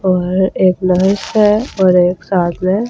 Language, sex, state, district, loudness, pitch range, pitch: Hindi, female, Delhi, New Delhi, -13 LUFS, 180-195 Hz, 185 Hz